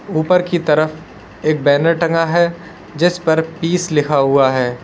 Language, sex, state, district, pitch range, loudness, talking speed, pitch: Hindi, male, Uttar Pradesh, Lalitpur, 145-170 Hz, -15 LUFS, 160 wpm, 160 Hz